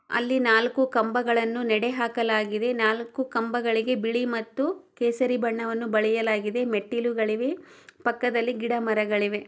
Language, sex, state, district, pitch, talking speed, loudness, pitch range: Kannada, female, Karnataka, Chamarajanagar, 235 Hz, 95 wpm, -25 LUFS, 225-245 Hz